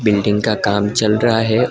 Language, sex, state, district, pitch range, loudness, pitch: Hindi, male, Assam, Hailakandi, 105-110 Hz, -16 LUFS, 105 Hz